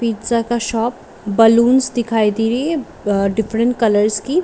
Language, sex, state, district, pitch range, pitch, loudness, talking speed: Hindi, female, Jharkhand, Sahebganj, 220-240 Hz, 230 Hz, -16 LUFS, 150 wpm